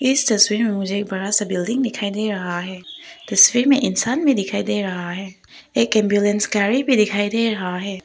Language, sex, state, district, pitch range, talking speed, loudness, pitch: Hindi, female, Arunachal Pradesh, Papum Pare, 195-230 Hz, 210 wpm, -19 LUFS, 205 Hz